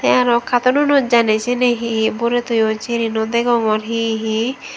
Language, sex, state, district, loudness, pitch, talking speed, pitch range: Chakma, female, Tripura, Dhalai, -17 LUFS, 235 Hz, 165 wpm, 220-245 Hz